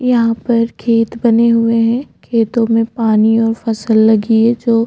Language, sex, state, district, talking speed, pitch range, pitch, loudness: Hindi, female, Chhattisgarh, Jashpur, 185 wpm, 225-235 Hz, 230 Hz, -13 LUFS